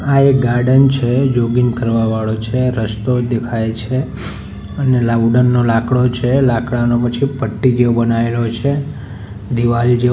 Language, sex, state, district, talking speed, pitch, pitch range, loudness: Gujarati, male, Gujarat, Valsad, 140 wpm, 120 Hz, 115-125 Hz, -15 LUFS